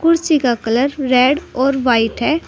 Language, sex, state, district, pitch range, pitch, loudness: Hindi, female, Uttar Pradesh, Saharanpur, 245-305 Hz, 265 Hz, -15 LUFS